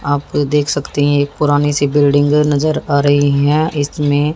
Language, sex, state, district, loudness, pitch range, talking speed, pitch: Hindi, female, Haryana, Jhajjar, -14 LUFS, 145-150 Hz, 190 wpm, 145 Hz